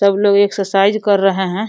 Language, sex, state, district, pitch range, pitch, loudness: Hindi, female, Uttar Pradesh, Deoria, 195-205 Hz, 200 Hz, -14 LUFS